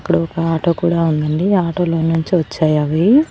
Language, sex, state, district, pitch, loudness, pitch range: Telugu, female, Andhra Pradesh, Annamaya, 165 Hz, -16 LUFS, 160-175 Hz